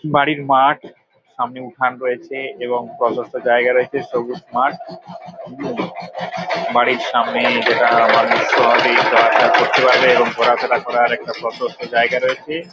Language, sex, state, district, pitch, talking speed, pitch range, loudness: Bengali, male, West Bengal, Paschim Medinipur, 125 Hz, 110 wpm, 120-140 Hz, -16 LUFS